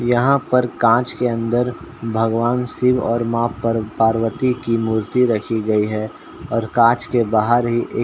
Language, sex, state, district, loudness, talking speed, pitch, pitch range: Hindi, male, Uttar Pradesh, Ghazipur, -18 LUFS, 170 wpm, 115 Hz, 115-120 Hz